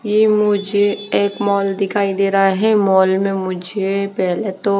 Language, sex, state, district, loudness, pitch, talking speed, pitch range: Hindi, female, Haryana, Charkhi Dadri, -17 LUFS, 200 Hz, 165 wpm, 195-205 Hz